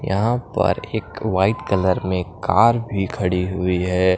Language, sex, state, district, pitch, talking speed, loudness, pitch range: Hindi, male, Punjab, Pathankot, 95 Hz, 160 wpm, -20 LUFS, 90-110 Hz